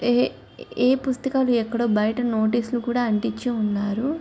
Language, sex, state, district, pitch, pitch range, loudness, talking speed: Telugu, female, Andhra Pradesh, Chittoor, 240 Hz, 220-250 Hz, -23 LUFS, 140 wpm